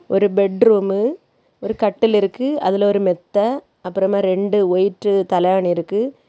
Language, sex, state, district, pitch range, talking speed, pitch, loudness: Tamil, female, Tamil Nadu, Kanyakumari, 190-215 Hz, 135 wpm, 200 Hz, -18 LUFS